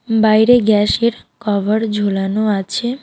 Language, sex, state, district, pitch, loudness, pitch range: Bengali, female, West Bengal, Alipurduar, 215 Hz, -15 LUFS, 205-230 Hz